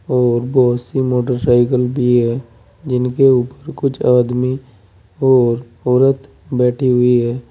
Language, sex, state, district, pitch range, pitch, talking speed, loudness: Hindi, male, Uttar Pradesh, Saharanpur, 120-130 Hz, 125 Hz, 120 wpm, -15 LUFS